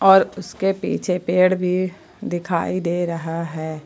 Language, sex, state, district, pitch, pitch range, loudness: Hindi, female, Jharkhand, Palamu, 180 Hz, 170-185 Hz, -21 LUFS